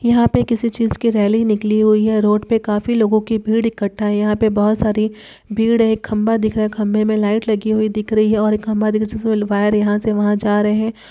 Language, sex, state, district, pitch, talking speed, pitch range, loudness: Hindi, female, Bihar, Araria, 215 Hz, 275 wpm, 210-220 Hz, -17 LUFS